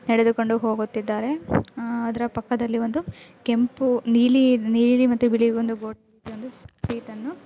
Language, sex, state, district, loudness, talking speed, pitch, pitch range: Kannada, female, Karnataka, Dharwad, -22 LUFS, 115 wpm, 235 Hz, 230-245 Hz